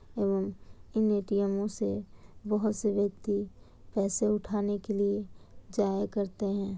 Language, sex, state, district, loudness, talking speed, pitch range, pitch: Hindi, female, Bihar, Kishanganj, -31 LUFS, 135 wpm, 195-210 Hz, 200 Hz